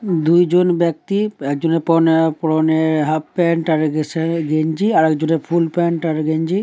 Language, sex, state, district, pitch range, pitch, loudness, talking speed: Bengali, male, West Bengal, Dakshin Dinajpur, 155-170 Hz, 165 Hz, -17 LUFS, 145 wpm